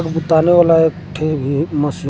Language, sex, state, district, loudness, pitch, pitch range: Hindi, male, Jharkhand, Garhwa, -15 LUFS, 160 Hz, 150-165 Hz